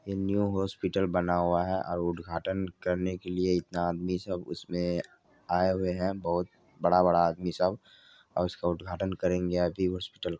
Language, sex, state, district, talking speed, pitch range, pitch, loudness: Maithili, male, Bihar, Supaul, 165 wpm, 85-95 Hz, 90 Hz, -30 LUFS